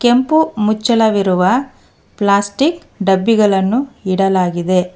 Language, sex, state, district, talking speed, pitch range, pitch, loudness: Kannada, female, Karnataka, Bangalore, 60 wpm, 190-245 Hz, 210 Hz, -14 LUFS